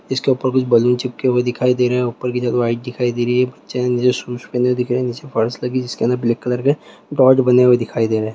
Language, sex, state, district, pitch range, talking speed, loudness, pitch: Hindi, male, Bihar, Vaishali, 120-125 Hz, 275 wpm, -17 LUFS, 125 Hz